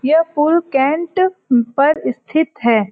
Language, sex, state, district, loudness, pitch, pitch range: Hindi, female, Uttar Pradesh, Varanasi, -16 LUFS, 295 Hz, 240-325 Hz